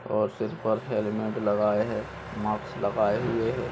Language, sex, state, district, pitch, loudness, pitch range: Hindi, male, Uttar Pradesh, Gorakhpur, 105 Hz, -28 LUFS, 105-115 Hz